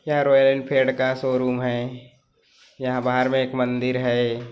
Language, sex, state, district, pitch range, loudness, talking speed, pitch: Hindi, male, Chhattisgarh, Korba, 125-130 Hz, -22 LUFS, 120 wpm, 125 Hz